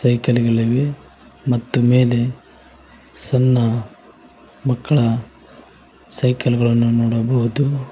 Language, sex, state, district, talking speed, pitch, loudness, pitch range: Kannada, male, Karnataka, Koppal, 70 wpm, 120 Hz, -18 LUFS, 115-130 Hz